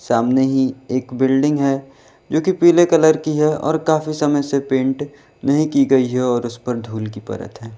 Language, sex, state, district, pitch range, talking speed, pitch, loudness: Hindi, male, Uttar Pradesh, Lalitpur, 125-150 Hz, 210 wpm, 135 Hz, -17 LUFS